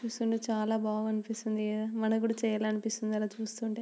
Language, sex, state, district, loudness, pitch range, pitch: Telugu, female, Andhra Pradesh, Srikakulam, -32 LUFS, 215-225 Hz, 220 Hz